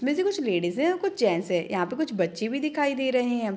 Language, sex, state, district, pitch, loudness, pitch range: Hindi, female, Bihar, Madhepura, 250 Hz, -26 LUFS, 185-305 Hz